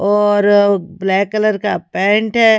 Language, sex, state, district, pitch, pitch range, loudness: Hindi, female, Himachal Pradesh, Shimla, 205 Hz, 195-210 Hz, -14 LUFS